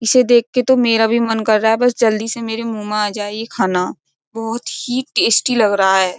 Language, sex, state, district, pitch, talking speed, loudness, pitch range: Hindi, female, Uttar Pradesh, Jyotiba Phule Nagar, 225 Hz, 250 wpm, -16 LUFS, 210-240 Hz